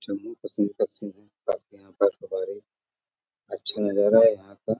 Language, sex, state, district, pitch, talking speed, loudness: Hindi, male, Bihar, Bhagalpur, 110 Hz, 175 wpm, -24 LUFS